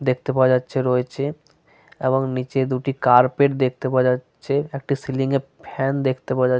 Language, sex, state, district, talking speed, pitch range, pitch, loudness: Bengali, male, Jharkhand, Sahebganj, 175 wpm, 130-140 Hz, 130 Hz, -21 LUFS